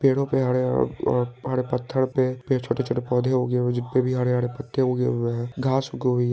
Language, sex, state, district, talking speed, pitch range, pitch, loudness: Hindi, male, Bihar, Saharsa, 180 wpm, 125-130 Hz, 125 Hz, -24 LUFS